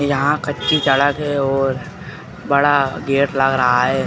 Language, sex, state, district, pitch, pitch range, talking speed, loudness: Hindi, male, Uttar Pradesh, Jalaun, 140 Hz, 135-145 Hz, 150 wpm, -17 LUFS